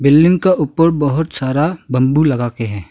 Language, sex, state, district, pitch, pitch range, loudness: Hindi, male, Arunachal Pradesh, Longding, 150 Hz, 130-165 Hz, -15 LUFS